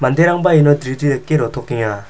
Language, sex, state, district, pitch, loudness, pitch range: Garo, male, Meghalaya, South Garo Hills, 135 Hz, -15 LUFS, 125-155 Hz